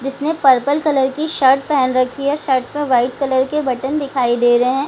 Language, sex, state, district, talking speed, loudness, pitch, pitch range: Hindi, female, Bihar, Gaya, 235 wpm, -16 LUFS, 270 Hz, 255-285 Hz